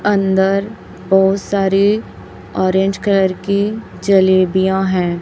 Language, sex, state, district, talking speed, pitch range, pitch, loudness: Hindi, female, Chhattisgarh, Raipur, 90 wpm, 185-200 Hz, 190 Hz, -15 LUFS